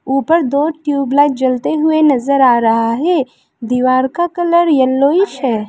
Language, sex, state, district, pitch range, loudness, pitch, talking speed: Hindi, female, Arunachal Pradesh, Lower Dibang Valley, 255-315 Hz, -13 LUFS, 275 Hz, 150 wpm